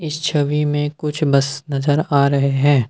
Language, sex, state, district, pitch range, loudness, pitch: Hindi, male, Assam, Kamrup Metropolitan, 140-150 Hz, -18 LUFS, 145 Hz